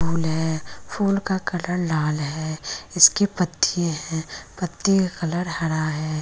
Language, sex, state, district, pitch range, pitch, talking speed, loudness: Hindi, female, Bihar, Lakhisarai, 155-180 Hz, 165 Hz, 145 wpm, -22 LUFS